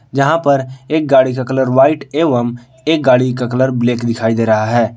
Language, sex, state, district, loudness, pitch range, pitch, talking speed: Hindi, male, Jharkhand, Palamu, -14 LUFS, 120-140 Hz, 130 Hz, 205 wpm